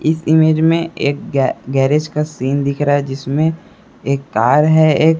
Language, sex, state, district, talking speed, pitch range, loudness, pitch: Hindi, male, Chhattisgarh, Raipur, 185 wpm, 140-160 Hz, -15 LUFS, 150 Hz